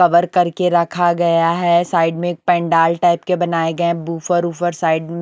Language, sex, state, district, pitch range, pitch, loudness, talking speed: Hindi, female, Punjab, Kapurthala, 165-175 Hz, 170 Hz, -16 LUFS, 195 wpm